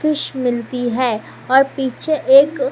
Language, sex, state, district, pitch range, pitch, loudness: Hindi, female, Maharashtra, Mumbai Suburban, 245-290 Hz, 265 Hz, -16 LUFS